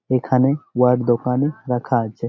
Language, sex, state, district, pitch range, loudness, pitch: Bengali, male, West Bengal, Jalpaiguri, 120-130 Hz, -19 LUFS, 125 Hz